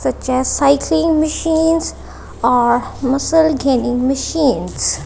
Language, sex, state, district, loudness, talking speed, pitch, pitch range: English, female, Punjab, Kapurthala, -15 LUFS, 95 wpm, 275 Hz, 255-320 Hz